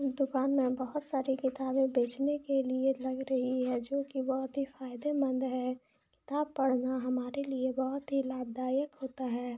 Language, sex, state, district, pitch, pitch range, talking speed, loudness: Hindi, female, Jharkhand, Jamtara, 265 Hz, 255-275 Hz, 165 wpm, -33 LUFS